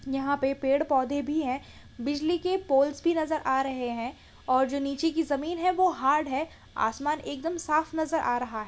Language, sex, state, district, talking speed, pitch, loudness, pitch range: Hindi, female, Chhattisgarh, Sukma, 215 wpm, 285 Hz, -28 LUFS, 265-320 Hz